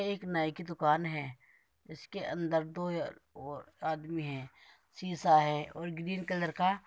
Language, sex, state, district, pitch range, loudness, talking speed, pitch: Hindi, male, Uttar Pradesh, Muzaffarnagar, 155-175 Hz, -34 LUFS, 150 wpm, 165 Hz